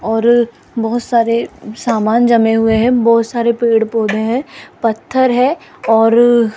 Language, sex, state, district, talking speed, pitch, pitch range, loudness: Hindi, female, Rajasthan, Jaipur, 145 wpm, 230 Hz, 225-240 Hz, -13 LUFS